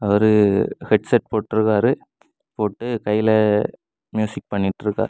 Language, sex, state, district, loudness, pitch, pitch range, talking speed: Tamil, male, Tamil Nadu, Kanyakumari, -20 LUFS, 110 Hz, 105-110 Hz, 95 wpm